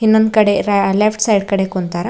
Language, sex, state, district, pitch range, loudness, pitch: Kannada, female, Karnataka, Bidar, 195-215 Hz, -15 LUFS, 205 Hz